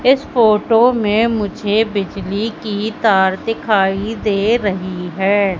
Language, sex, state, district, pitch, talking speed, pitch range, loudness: Hindi, female, Madhya Pradesh, Katni, 210 Hz, 120 wpm, 195-225 Hz, -16 LUFS